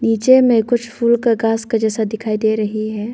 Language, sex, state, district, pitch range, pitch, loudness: Hindi, female, Arunachal Pradesh, Longding, 220-235 Hz, 225 Hz, -16 LUFS